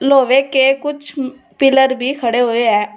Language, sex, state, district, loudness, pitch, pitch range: Hindi, female, Uttar Pradesh, Saharanpur, -14 LUFS, 265 Hz, 245-275 Hz